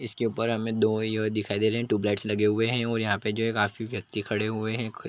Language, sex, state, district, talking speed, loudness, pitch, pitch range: Hindi, male, Chhattisgarh, Bilaspur, 295 wpm, -27 LUFS, 110 Hz, 105-115 Hz